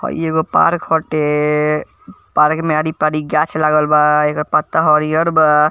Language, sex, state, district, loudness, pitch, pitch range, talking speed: Bhojpuri, male, Bihar, East Champaran, -15 LUFS, 155 Hz, 150-160 Hz, 155 wpm